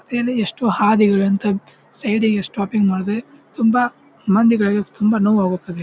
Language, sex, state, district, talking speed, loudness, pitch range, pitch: Kannada, male, Karnataka, Bijapur, 125 wpm, -18 LUFS, 200-225 Hz, 210 Hz